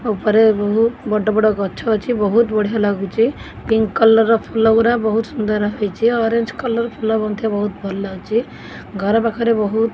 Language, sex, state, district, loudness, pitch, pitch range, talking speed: Odia, female, Odisha, Khordha, -17 LUFS, 220 Hz, 210-230 Hz, 165 wpm